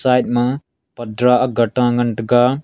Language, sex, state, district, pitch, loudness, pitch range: Wancho, male, Arunachal Pradesh, Longding, 120 Hz, -16 LUFS, 120-125 Hz